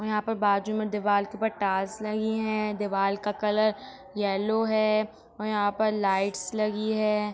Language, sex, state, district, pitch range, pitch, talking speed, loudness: Hindi, female, Jharkhand, Sahebganj, 205-215 Hz, 210 Hz, 180 wpm, -27 LUFS